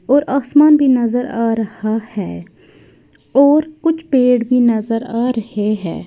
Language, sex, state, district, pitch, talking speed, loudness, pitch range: Hindi, female, Uttar Pradesh, Lalitpur, 240 Hz, 150 wpm, -15 LUFS, 220-275 Hz